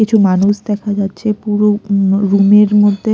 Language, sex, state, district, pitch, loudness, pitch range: Bengali, female, Odisha, Khordha, 205 Hz, -12 LUFS, 200-210 Hz